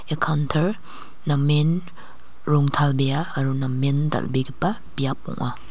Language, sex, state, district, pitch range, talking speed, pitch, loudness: Garo, female, Meghalaya, West Garo Hills, 135-160 Hz, 95 wpm, 145 Hz, -23 LUFS